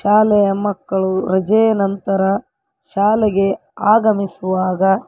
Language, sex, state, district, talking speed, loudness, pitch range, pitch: Kannada, female, Karnataka, Koppal, 70 wpm, -16 LUFS, 190-215 Hz, 200 Hz